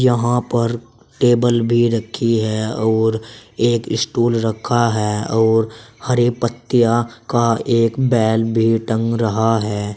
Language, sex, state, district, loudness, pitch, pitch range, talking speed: Hindi, male, Uttar Pradesh, Saharanpur, -17 LUFS, 115 Hz, 110-120 Hz, 125 wpm